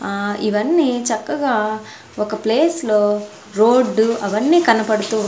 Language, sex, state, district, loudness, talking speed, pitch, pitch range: Telugu, female, Andhra Pradesh, Sri Satya Sai, -17 LUFS, 100 wpm, 220 Hz, 210-250 Hz